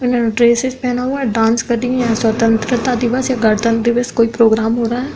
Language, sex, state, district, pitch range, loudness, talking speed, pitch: Hindi, female, Uttar Pradesh, Hamirpur, 230-250 Hz, -15 LUFS, 210 wpm, 235 Hz